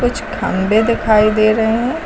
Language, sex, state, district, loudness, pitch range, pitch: Hindi, female, Uttar Pradesh, Lucknow, -14 LUFS, 215-235 Hz, 220 Hz